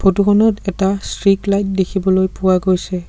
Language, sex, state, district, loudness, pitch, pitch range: Assamese, male, Assam, Sonitpur, -16 LUFS, 195 Hz, 190-200 Hz